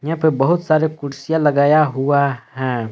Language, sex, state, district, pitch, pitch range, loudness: Hindi, male, Jharkhand, Palamu, 145 Hz, 135-155 Hz, -17 LUFS